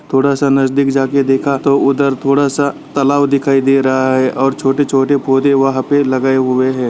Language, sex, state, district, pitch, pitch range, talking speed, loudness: Hindi, male, Bihar, Gaya, 135 Hz, 135-140 Hz, 210 wpm, -13 LUFS